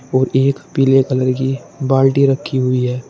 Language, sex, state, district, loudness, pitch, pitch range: Hindi, male, Uttar Pradesh, Shamli, -15 LUFS, 130 Hz, 130-135 Hz